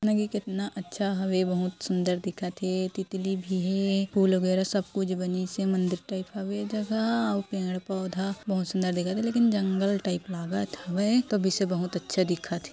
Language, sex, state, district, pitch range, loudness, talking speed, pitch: Hindi, female, Chhattisgarh, Korba, 185-200 Hz, -28 LUFS, 200 wpm, 190 Hz